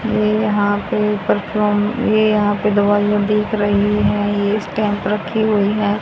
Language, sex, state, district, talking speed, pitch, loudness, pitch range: Hindi, female, Haryana, Jhajjar, 160 wpm, 210 Hz, -17 LUFS, 205-210 Hz